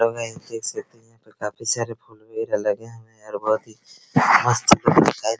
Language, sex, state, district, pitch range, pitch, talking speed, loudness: Hindi, male, Bihar, Araria, 110-115 Hz, 115 Hz, 190 wpm, -21 LUFS